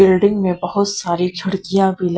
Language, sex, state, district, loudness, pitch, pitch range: Hindi, female, Punjab, Kapurthala, -17 LUFS, 190 Hz, 180-195 Hz